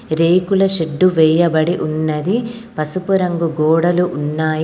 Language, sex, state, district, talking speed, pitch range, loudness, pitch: Telugu, female, Telangana, Komaram Bheem, 105 wpm, 155-185 Hz, -16 LUFS, 170 Hz